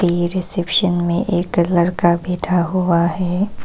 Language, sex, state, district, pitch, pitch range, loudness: Hindi, female, Arunachal Pradesh, Papum Pare, 175 Hz, 175-185 Hz, -17 LUFS